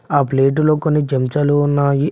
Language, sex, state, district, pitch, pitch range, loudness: Telugu, male, Telangana, Mahabubabad, 145 Hz, 140-150 Hz, -16 LUFS